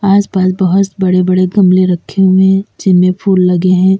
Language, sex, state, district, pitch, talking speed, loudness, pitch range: Hindi, female, Uttar Pradesh, Lalitpur, 185 Hz, 180 wpm, -10 LUFS, 185-195 Hz